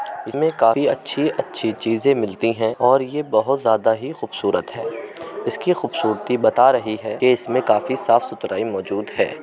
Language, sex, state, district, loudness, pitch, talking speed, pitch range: Hindi, male, Uttar Pradesh, Muzaffarnagar, -20 LUFS, 115 Hz, 160 wpm, 110-140 Hz